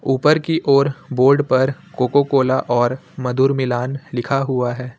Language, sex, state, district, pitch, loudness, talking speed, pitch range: Hindi, male, Uttar Pradesh, Lucknow, 135 Hz, -18 LUFS, 155 wpm, 125-140 Hz